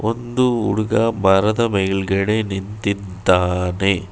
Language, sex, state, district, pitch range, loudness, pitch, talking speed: Kannada, male, Karnataka, Bangalore, 95-110 Hz, -18 LUFS, 100 Hz, 75 wpm